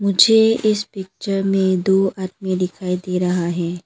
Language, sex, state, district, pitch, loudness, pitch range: Hindi, female, Arunachal Pradesh, Papum Pare, 190 Hz, -18 LUFS, 180-200 Hz